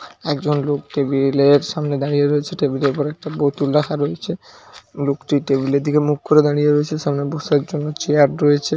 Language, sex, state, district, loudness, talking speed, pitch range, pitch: Bengali, male, West Bengal, Paschim Medinipur, -18 LUFS, 185 wpm, 140-150 Hz, 145 Hz